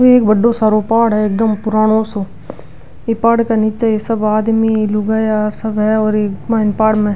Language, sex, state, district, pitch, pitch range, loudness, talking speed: Rajasthani, female, Rajasthan, Nagaur, 220 Hz, 215-225 Hz, -14 LUFS, 200 wpm